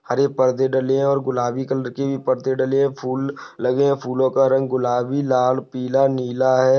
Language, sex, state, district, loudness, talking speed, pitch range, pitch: Hindi, male, Jharkhand, Sahebganj, -20 LUFS, 205 wpm, 130-135 Hz, 130 Hz